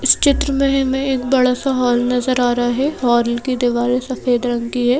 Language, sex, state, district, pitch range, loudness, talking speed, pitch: Hindi, female, Madhya Pradesh, Bhopal, 245-265 Hz, -17 LUFS, 215 wpm, 250 Hz